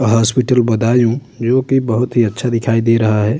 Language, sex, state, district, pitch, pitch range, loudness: Hindi, male, Uttar Pradesh, Budaun, 115 Hz, 115-125 Hz, -14 LUFS